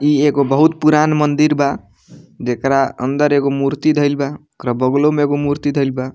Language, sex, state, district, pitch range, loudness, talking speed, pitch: Bhojpuri, male, Bihar, Muzaffarpur, 140-150 Hz, -16 LUFS, 185 wpm, 145 Hz